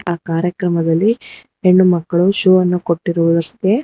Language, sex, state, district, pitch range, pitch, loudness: Kannada, female, Karnataka, Bangalore, 170-185 Hz, 180 Hz, -15 LUFS